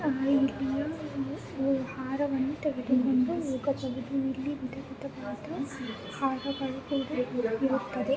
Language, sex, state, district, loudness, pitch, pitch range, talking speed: Kannada, female, Karnataka, Belgaum, -31 LUFS, 270 Hz, 260-275 Hz, 105 wpm